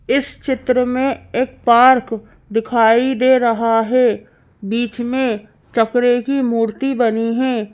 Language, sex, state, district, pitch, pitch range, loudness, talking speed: Hindi, female, Madhya Pradesh, Bhopal, 240 Hz, 225-255 Hz, -16 LUFS, 125 wpm